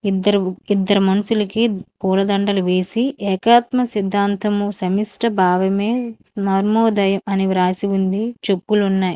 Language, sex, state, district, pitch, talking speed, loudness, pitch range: Telugu, female, Andhra Pradesh, Manyam, 200 Hz, 100 wpm, -18 LUFS, 190-215 Hz